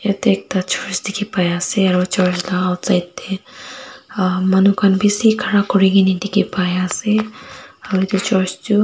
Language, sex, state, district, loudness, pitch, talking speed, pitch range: Nagamese, female, Nagaland, Dimapur, -17 LUFS, 195 Hz, 130 wpm, 185-205 Hz